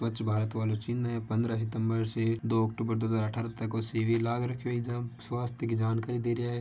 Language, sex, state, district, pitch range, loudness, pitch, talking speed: Marwari, male, Rajasthan, Nagaur, 110-120 Hz, -31 LUFS, 115 Hz, 220 wpm